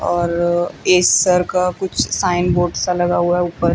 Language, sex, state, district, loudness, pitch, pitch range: Hindi, female, Chandigarh, Chandigarh, -16 LUFS, 175 Hz, 175-180 Hz